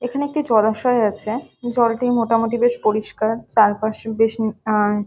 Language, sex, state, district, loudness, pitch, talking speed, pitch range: Bengali, female, West Bengal, Jhargram, -19 LUFS, 225 Hz, 165 wpm, 215-240 Hz